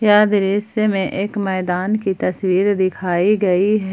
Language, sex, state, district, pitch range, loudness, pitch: Hindi, female, Jharkhand, Palamu, 185-210 Hz, -18 LUFS, 195 Hz